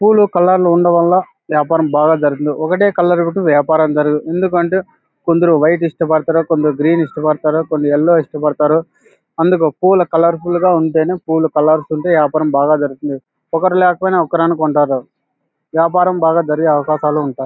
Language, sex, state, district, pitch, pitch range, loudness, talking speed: Telugu, male, Andhra Pradesh, Anantapur, 160 Hz, 150-175 Hz, -14 LUFS, 160 wpm